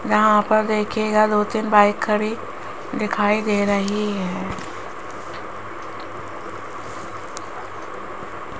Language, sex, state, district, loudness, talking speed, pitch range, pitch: Hindi, female, Rajasthan, Jaipur, -20 LUFS, 75 wpm, 205-215 Hz, 210 Hz